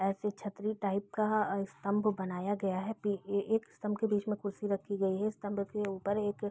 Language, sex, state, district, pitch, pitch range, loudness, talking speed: Hindi, female, Bihar, East Champaran, 205 Hz, 200-210 Hz, -34 LUFS, 220 wpm